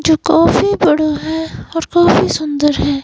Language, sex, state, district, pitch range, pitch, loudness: Hindi, female, Himachal Pradesh, Shimla, 295-330 Hz, 310 Hz, -14 LUFS